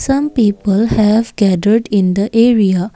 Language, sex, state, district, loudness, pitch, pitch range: English, female, Assam, Kamrup Metropolitan, -13 LUFS, 210 Hz, 200-230 Hz